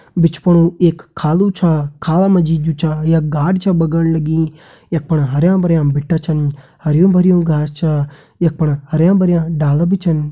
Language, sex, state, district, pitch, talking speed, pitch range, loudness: Hindi, male, Uttarakhand, Tehri Garhwal, 160 Hz, 185 wpm, 150-175 Hz, -14 LUFS